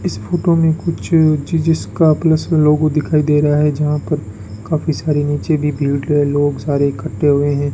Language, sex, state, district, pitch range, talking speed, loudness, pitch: Hindi, male, Rajasthan, Bikaner, 145-155 Hz, 195 wpm, -15 LUFS, 150 Hz